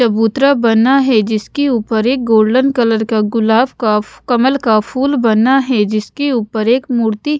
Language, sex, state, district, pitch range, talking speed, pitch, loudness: Hindi, female, Chandigarh, Chandigarh, 220-265 Hz, 170 wpm, 235 Hz, -13 LUFS